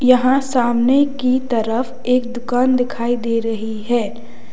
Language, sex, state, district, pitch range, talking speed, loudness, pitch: Hindi, male, Uttar Pradesh, Lalitpur, 235-255 Hz, 130 wpm, -18 LUFS, 245 Hz